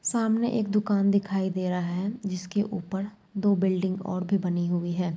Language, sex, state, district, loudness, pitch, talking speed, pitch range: Angika, female, Bihar, Madhepura, -27 LUFS, 195 Hz, 195 wpm, 180-205 Hz